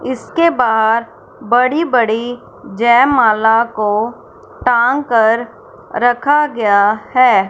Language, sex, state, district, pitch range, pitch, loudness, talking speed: Hindi, female, Punjab, Fazilka, 220-250 Hz, 235 Hz, -13 LUFS, 90 wpm